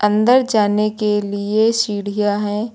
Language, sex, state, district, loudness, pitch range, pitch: Hindi, female, Uttar Pradesh, Lucknow, -17 LUFS, 205-220 Hz, 210 Hz